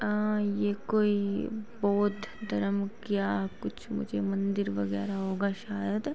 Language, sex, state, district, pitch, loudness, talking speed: Hindi, female, Uttar Pradesh, Varanasi, 200 Hz, -31 LUFS, 125 wpm